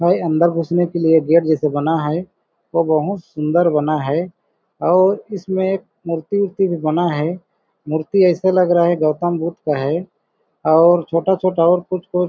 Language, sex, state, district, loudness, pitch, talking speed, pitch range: Hindi, male, Chhattisgarh, Balrampur, -17 LUFS, 170 Hz, 165 wpm, 160-185 Hz